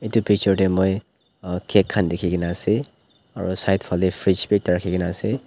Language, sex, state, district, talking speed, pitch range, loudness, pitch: Nagamese, male, Nagaland, Dimapur, 220 wpm, 90-100 Hz, -21 LUFS, 95 Hz